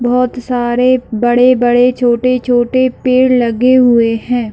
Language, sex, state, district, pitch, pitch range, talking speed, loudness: Hindi, female, Jharkhand, Sahebganj, 245 Hz, 240-255 Hz, 105 wpm, -11 LUFS